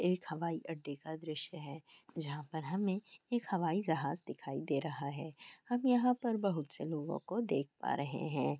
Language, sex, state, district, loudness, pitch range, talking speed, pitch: Hindi, female, Bihar, Kishanganj, -38 LUFS, 150-195 Hz, 190 wpm, 160 Hz